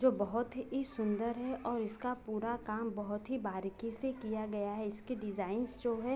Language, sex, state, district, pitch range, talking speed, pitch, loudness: Hindi, female, Jharkhand, Jamtara, 210-245 Hz, 195 wpm, 230 Hz, -38 LUFS